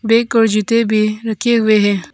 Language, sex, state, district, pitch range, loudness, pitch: Hindi, female, Arunachal Pradesh, Papum Pare, 215-230 Hz, -14 LUFS, 220 Hz